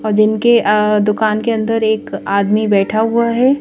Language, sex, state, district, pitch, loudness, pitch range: Hindi, female, Madhya Pradesh, Bhopal, 220 Hz, -14 LUFS, 210-230 Hz